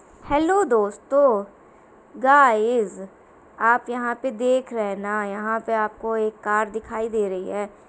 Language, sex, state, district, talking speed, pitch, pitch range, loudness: Hindi, female, Uttar Pradesh, Muzaffarnagar, 145 wpm, 225 Hz, 210-245 Hz, -22 LUFS